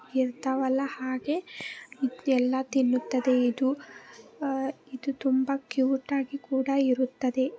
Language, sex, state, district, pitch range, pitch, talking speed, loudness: Kannada, female, Karnataka, Belgaum, 255-275 Hz, 265 Hz, 105 wpm, -28 LUFS